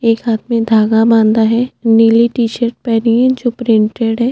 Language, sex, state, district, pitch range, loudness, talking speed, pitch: Hindi, female, Chhattisgarh, Jashpur, 225-235 Hz, -12 LUFS, 195 wpm, 230 Hz